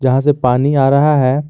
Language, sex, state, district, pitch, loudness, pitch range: Hindi, male, Jharkhand, Garhwa, 140 Hz, -13 LUFS, 130-145 Hz